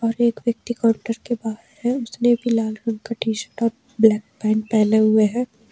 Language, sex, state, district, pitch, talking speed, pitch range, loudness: Hindi, female, Jharkhand, Ranchi, 230 Hz, 190 wpm, 220-240 Hz, -21 LUFS